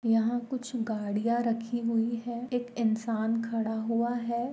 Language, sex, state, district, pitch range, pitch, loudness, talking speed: Hindi, female, Goa, North and South Goa, 225-240 Hz, 230 Hz, -30 LUFS, 145 wpm